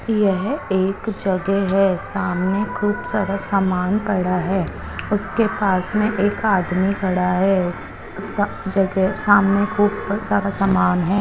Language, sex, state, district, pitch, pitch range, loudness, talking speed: Hindi, female, Chandigarh, Chandigarh, 195 Hz, 190-205 Hz, -20 LUFS, 130 wpm